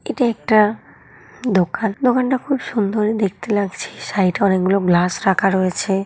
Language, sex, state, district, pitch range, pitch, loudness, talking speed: Bengali, female, West Bengal, Jhargram, 190-225 Hz, 205 Hz, -18 LUFS, 160 wpm